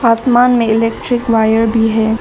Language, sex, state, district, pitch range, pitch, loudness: Hindi, female, Arunachal Pradesh, Lower Dibang Valley, 225-240 Hz, 225 Hz, -12 LUFS